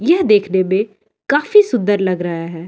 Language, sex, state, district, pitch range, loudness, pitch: Hindi, female, Delhi, New Delhi, 185-270 Hz, -15 LUFS, 200 Hz